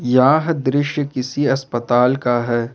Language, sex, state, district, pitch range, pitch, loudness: Hindi, male, Jharkhand, Ranchi, 120-145 Hz, 130 Hz, -18 LUFS